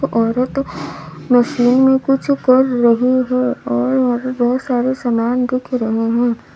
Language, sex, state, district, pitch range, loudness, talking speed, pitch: Hindi, female, Uttar Pradesh, Lalitpur, 235-260 Hz, -16 LUFS, 135 wpm, 250 Hz